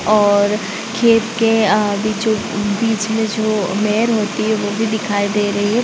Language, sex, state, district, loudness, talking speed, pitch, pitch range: Hindi, female, Chhattisgarh, Bilaspur, -16 LUFS, 185 wpm, 215 Hz, 205-220 Hz